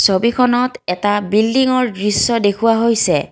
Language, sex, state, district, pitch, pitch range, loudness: Assamese, female, Assam, Kamrup Metropolitan, 225 Hz, 205-245 Hz, -15 LUFS